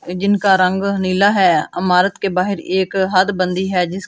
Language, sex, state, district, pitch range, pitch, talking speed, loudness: Hindi, female, Delhi, New Delhi, 185-195 Hz, 190 Hz, 175 wpm, -16 LUFS